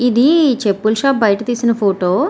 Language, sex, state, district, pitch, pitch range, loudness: Telugu, female, Andhra Pradesh, Srikakulam, 230 Hz, 205-245 Hz, -14 LUFS